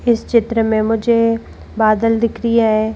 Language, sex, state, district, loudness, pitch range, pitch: Hindi, female, Madhya Pradesh, Bhopal, -15 LUFS, 220-230 Hz, 230 Hz